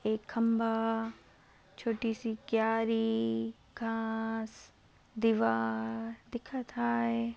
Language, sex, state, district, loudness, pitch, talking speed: Hindi, female, Maharashtra, Sindhudurg, -33 LUFS, 225 Hz, 65 wpm